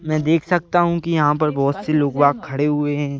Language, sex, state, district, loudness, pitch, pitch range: Hindi, male, Madhya Pradesh, Bhopal, -19 LUFS, 150 Hz, 145-165 Hz